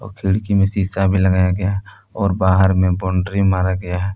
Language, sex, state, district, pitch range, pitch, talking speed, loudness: Hindi, male, Jharkhand, Palamu, 95-100 Hz, 95 Hz, 200 wpm, -17 LUFS